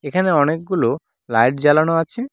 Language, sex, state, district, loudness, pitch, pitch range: Bengali, male, West Bengal, Cooch Behar, -17 LUFS, 155 Hz, 140-185 Hz